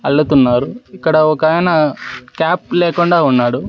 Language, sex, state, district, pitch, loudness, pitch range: Telugu, male, Andhra Pradesh, Sri Satya Sai, 155 Hz, -13 LUFS, 140-175 Hz